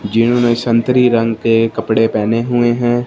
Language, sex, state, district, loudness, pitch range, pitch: Hindi, male, Punjab, Fazilka, -14 LUFS, 115-120 Hz, 115 Hz